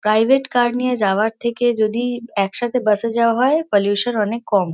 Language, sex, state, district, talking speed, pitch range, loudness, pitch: Bengali, female, West Bengal, Kolkata, 175 wpm, 210-245 Hz, -18 LUFS, 235 Hz